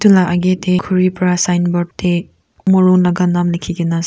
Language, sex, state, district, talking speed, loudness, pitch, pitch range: Nagamese, female, Nagaland, Kohima, 175 wpm, -14 LUFS, 180 Hz, 175-185 Hz